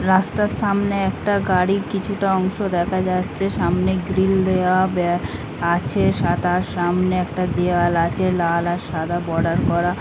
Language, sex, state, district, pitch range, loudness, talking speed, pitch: Bengali, female, West Bengal, Kolkata, 175-190 Hz, -20 LUFS, 140 wpm, 185 Hz